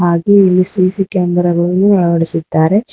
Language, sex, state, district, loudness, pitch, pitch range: Kannada, female, Karnataka, Bangalore, -12 LUFS, 180 Hz, 170-195 Hz